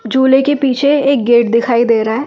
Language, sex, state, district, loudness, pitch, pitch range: Hindi, female, Delhi, New Delhi, -12 LUFS, 260 Hz, 235-275 Hz